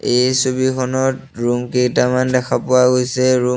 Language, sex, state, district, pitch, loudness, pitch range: Assamese, male, Assam, Sonitpur, 125 Hz, -16 LUFS, 125-130 Hz